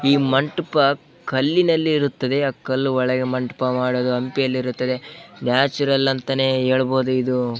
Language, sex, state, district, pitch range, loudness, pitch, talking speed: Kannada, male, Karnataka, Bellary, 130-140 Hz, -20 LUFS, 130 Hz, 120 wpm